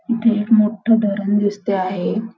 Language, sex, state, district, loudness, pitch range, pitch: Marathi, female, Maharashtra, Nagpur, -18 LUFS, 205-225 Hz, 210 Hz